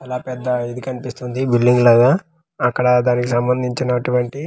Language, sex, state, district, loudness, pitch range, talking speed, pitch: Telugu, male, Andhra Pradesh, Manyam, -17 LUFS, 125-130 Hz, 120 wpm, 125 Hz